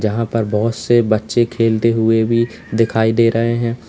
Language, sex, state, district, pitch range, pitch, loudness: Hindi, male, Uttar Pradesh, Lalitpur, 110-115 Hz, 115 Hz, -16 LUFS